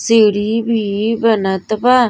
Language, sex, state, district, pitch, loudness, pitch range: Bhojpuri, female, Uttar Pradesh, Gorakhpur, 220 Hz, -15 LUFS, 210-230 Hz